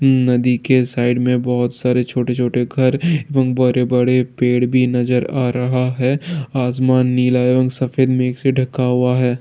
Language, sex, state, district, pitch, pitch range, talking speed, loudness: Hindi, male, Bihar, Jahanabad, 125 Hz, 125-130 Hz, 165 wpm, -16 LUFS